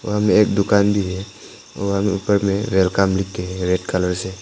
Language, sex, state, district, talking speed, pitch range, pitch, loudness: Hindi, male, Arunachal Pradesh, Papum Pare, 215 wpm, 95-100 Hz, 100 Hz, -19 LUFS